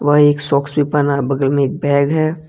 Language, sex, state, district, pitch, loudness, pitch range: Hindi, male, Jharkhand, Ranchi, 145 Hz, -15 LUFS, 140-150 Hz